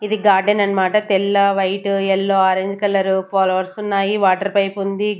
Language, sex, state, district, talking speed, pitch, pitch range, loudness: Telugu, female, Andhra Pradesh, Sri Satya Sai, 150 wpm, 195 Hz, 190-200 Hz, -17 LUFS